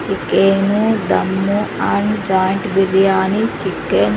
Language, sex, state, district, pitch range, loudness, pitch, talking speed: Telugu, female, Andhra Pradesh, Sri Satya Sai, 190-205 Hz, -16 LUFS, 195 Hz, 100 wpm